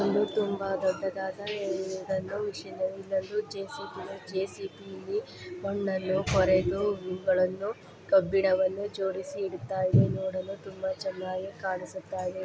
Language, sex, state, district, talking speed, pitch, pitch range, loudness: Kannada, female, Karnataka, Dharwad, 105 wpm, 190 Hz, 185-200 Hz, -30 LUFS